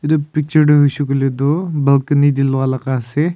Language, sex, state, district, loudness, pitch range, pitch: Nagamese, male, Nagaland, Kohima, -15 LUFS, 135-150 Hz, 145 Hz